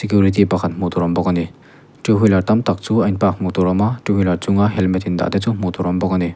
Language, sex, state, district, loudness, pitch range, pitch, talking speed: Mizo, male, Mizoram, Aizawl, -17 LUFS, 90-100 Hz, 95 Hz, 320 wpm